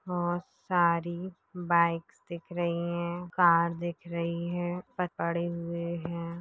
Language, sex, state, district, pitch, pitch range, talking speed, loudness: Hindi, female, Maharashtra, Pune, 170 Hz, 170-175 Hz, 120 wpm, -30 LUFS